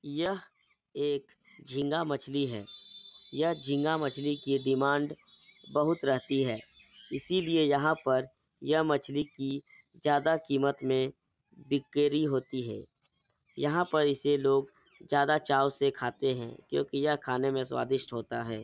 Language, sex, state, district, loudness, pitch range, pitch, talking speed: Hindi, male, Bihar, Jahanabad, -31 LUFS, 135-150 Hz, 140 Hz, 130 wpm